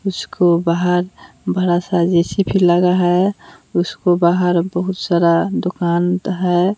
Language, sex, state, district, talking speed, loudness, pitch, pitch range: Hindi, female, Bihar, West Champaran, 115 wpm, -16 LUFS, 180 Hz, 175-185 Hz